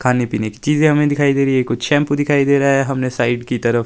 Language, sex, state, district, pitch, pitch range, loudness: Hindi, male, Himachal Pradesh, Shimla, 135 Hz, 120-145 Hz, -16 LUFS